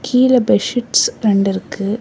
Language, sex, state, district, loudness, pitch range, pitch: Tamil, female, Tamil Nadu, Namakkal, -15 LUFS, 200-250 Hz, 235 Hz